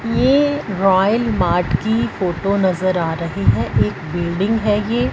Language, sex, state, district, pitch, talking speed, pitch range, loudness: Hindi, female, Punjab, Fazilka, 190 Hz, 150 wpm, 170-220 Hz, -17 LUFS